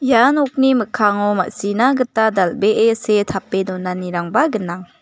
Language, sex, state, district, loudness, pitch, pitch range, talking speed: Garo, female, Meghalaya, West Garo Hills, -17 LUFS, 210 Hz, 185-245 Hz, 120 wpm